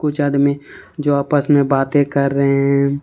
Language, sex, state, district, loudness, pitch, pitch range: Hindi, male, Jharkhand, Ranchi, -16 LUFS, 140 Hz, 140-145 Hz